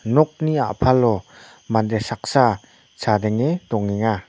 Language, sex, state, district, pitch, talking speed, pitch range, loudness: Garo, male, Meghalaya, North Garo Hills, 115 Hz, 85 wpm, 110-145 Hz, -20 LUFS